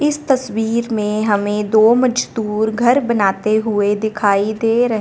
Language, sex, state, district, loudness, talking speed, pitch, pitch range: Hindi, female, Punjab, Fazilka, -16 LUFS, 145 wpm, 220 Hz, 210-235 Hz